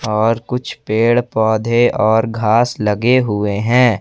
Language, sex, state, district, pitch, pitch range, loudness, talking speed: Hindi, male, Jharkhand, Ranchi, 115 Hz, 110-120 Hz, -15 LUFS, 135 wpm